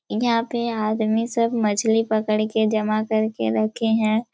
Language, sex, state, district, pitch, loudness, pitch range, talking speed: Hindi, female, Chhattisgarh, Raigarh, 220 Hz, -21 LUFS, 215-230 Hz, 150 wpm